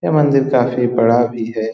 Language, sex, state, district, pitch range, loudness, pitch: Hindi, male, Bihar, Saran, 115-130 Hz, -15 LUFS, 120 Hz